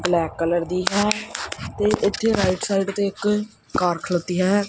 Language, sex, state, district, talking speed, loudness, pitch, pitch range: Punjabi, male, Punjab, Kapurthala, 140 wpm, -22 LUFS, 195 Hz, 180-205 Hz